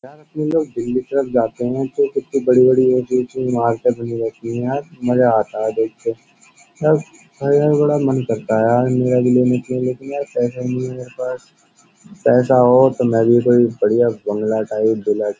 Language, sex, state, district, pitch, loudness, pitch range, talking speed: Hindi, male, Uttar Pradesh, Jyotiba Phule Nagar, 125 Hz, -17 LUFS, 115-130 Hz, 190 wpm